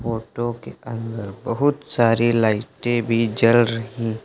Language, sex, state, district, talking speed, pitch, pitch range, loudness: Hindi, male, Uttar Pradesh, Lucknow, 125 wpm, 115 Hz, 115-120 Hz, -21 LUFS